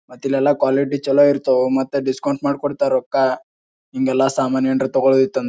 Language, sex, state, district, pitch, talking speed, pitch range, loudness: Kannada, male, Karnataka, Bijapur, 135 Hz, 175 wpm, 130-140 Hz, -18 LUFS